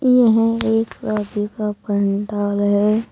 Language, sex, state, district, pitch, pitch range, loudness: Hindi, female, Uttar Pradesh, Saharanpur, 210 Hz, 205-225 Hz, -19 LUFS